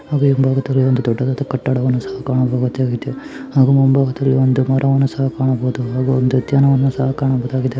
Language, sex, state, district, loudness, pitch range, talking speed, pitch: Kannada, male, Karnataka, Mysore, -16 LUFS, 130-135 Hz, 145 wpm, 130 Hz